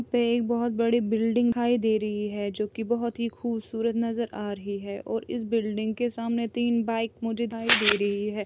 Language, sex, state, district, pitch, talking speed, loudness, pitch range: Hindi, female, Andhra Pradesh, Chittoor, 230 Hz, 200 wpm, -27 LUFS, 215-235 Hz